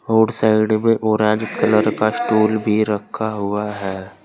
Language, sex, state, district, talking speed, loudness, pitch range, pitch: Hindi, male, Uttar Pradesh, Saharanpur, 155 wpm, -18 LUFS, 105-110 Hz, 110 Hz